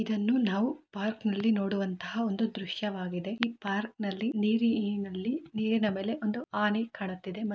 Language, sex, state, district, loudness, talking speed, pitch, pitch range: Kannada, female, Karnataka, Mysore, -31 LUFS, 105 wpm, 215 Hz, 200-225 Hz